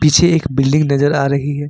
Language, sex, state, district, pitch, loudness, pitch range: Hindi, male, Jharkhand, Ranchi, 145 Hz, -14 LUFS, 140-150 Hz